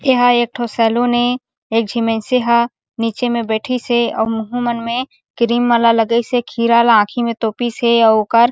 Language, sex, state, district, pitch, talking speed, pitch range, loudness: Chhattisgarhi, female, Chhattisgarh, Sarguja, 235 Hz, 185 wpm, 230-245 Hz, -16 LUFS